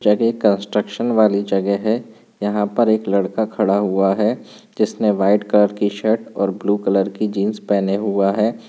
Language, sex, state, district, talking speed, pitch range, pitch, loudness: Hindi, male, Uttar Pradesh, Budaun, 175 wpm, 100-110 Hz, 105 Hz, -18 LUFS